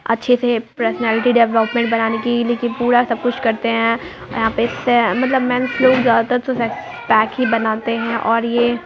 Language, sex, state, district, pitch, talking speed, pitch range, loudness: Hindi, female, Bihar, Muzaffarpur, 235 Hz, 140 wpm, 230-245 Hz, -17 LUFS